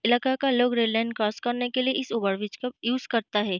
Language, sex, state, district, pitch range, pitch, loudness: Hindi, female, Uttar Pradesh, Jalaun, 215-250 Hz, 240 Hz, -26 LUFS